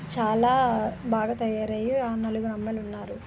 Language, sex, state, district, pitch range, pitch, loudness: Telugu, female, Andhra Pradesh, Visakhapatnam, 215-230 Hz, 220 Hz, -26 LUFS